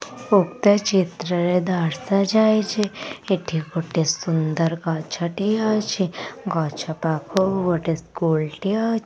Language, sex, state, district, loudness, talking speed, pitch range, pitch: Odia, female, Odisha, Khordha, -22 LUFS, 95 wpm, 165-205 Hz, 180 Hz